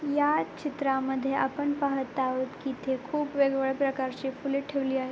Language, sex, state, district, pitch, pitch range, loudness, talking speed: Marathi, female, Maharashtra, Pune, 270 Hz, 265-285 Hz, -29 LUFS, 150 wpm